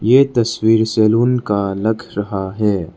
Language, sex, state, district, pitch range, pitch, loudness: Hindi, male, Arunachal Pradesh, Lower Dibang Valley, 100-115 Hz, 110 Hz, -16 LUFS